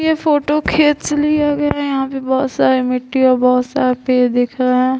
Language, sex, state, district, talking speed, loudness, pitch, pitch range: Hindi, female, Bihar, Vaishali, 230 wpm, -15 LUFS, 265 Hz, 255-295 Hz